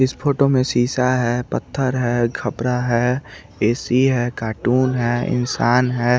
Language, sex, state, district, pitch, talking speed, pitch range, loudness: Hindi, male, Chandigarh, Chandigarh, 125 Hz, 145 wpm, 120-130 Hz, -19 LUFS